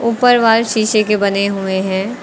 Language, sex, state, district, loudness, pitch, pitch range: Hindi, female, Uttar Pradesh, Lucknow, -14 LUFS, 215 Hz, 200-230 Hz